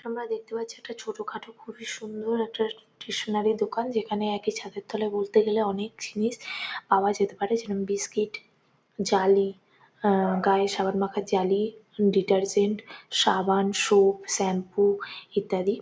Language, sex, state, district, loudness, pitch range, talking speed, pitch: Bengali, female, West Bengal, Kolkata, -26 LUFS, 195-220 Hz, 130 wpm, 205 Hz